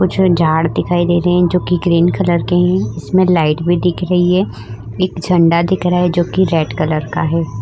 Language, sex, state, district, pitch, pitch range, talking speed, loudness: Hindi, female, Uttar Pradesh, Muzaffarnagar, 175 Hz, 160-180 Hz, 220 wpm, -14 LUFS